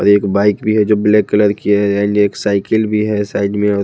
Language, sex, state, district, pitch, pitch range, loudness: Hindi, male, Himachal Pradesh, Shimla, 105 Hz, 100-105 Hz, -14 LUFS